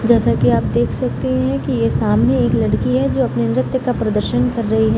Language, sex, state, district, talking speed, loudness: Hindi, female, Bihar, Samastipur, 230 wpm, -17 LUFS